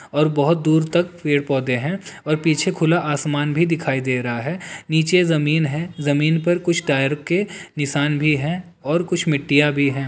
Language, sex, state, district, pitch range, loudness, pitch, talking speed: Hindi, male, Bihar, Darbhanga, 145-170 Hz, -19 LUFS, 155 Hz, 185 wpm